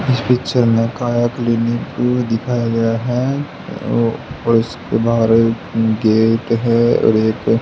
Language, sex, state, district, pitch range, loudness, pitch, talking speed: Hindi, male, Haryana, Charkhi Dadri, 115-120 Hz, -16 LUFS, 115 Hz, 140 wpm